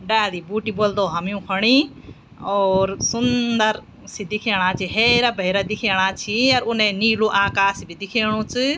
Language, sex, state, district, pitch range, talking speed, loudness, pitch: Garhwali, female, Uttarakhand, Tehri Garhwal, 195-225 Hz, 145 wpm, -19 LUFS, 210 Hz